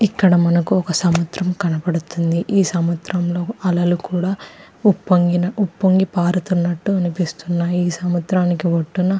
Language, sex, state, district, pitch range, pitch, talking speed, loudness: Telugu, female, Andhra Pradesh, Krishna, 175-185 Hz, 175 Hz, 110 wpm, -18 LUFS